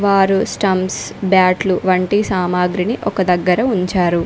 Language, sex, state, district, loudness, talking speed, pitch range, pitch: Telugu, female, Telangana, Mahabubabad, -16 LUFS, 115 wpm, 180-195 Hz, 185 Hz